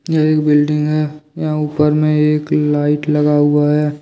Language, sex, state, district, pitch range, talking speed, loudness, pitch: Hindi, male, Jharkhand, Deoghar, 150-155 Hz, 180 wpm, -15 LUFS, 150 Hz